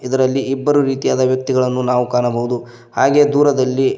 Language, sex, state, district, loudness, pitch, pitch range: Kannada, male, Karnataka, Koppal, -16 LUFS, 130 Hz, 125-135 Hz